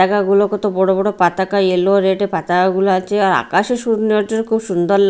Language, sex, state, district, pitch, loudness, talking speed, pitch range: Bengali, female, Odisha, Malkangiri, 195 Hz, -15 LUFS, 200 wpm, 190-205 Hz